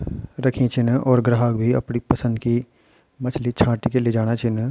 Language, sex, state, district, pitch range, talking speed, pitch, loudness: Garhwali, male, Uttarakhand, Tehri Garhwal, 115-125 Hz, 180 wpm, 120 Hz, -21 LUFS